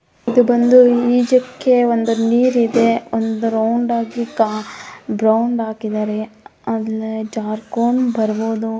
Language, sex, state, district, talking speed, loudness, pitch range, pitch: Kannada, female, Karnataka, Mysore, 95 wpm, -17 LUFS, 220-240 Hz, 230 Hz